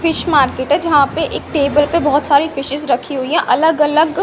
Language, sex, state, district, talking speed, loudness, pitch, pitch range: Hindi, female, Haryana, Rohtak, 225 wpm, -15 LUFS, 295 Hz, 285-320 Hz